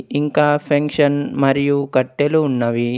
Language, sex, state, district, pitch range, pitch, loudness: Telugu, male, Telangana, Komaram Bheem, 135-145 Hz, 145 Hz, -17 LUFS